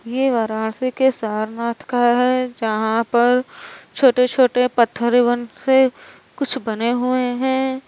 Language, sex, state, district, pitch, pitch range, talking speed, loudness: Hindi, female, Uttar Pradesh, Varanasi, 245 Hz, 235-255 Hz, 120 wpm, -18 LUFS